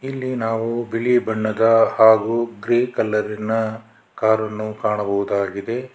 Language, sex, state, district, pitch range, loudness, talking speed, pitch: Kannada, male, Karnataka, Bangalore, 110-120 Hz, -19 LUFS, 90 wpm, 115 Hz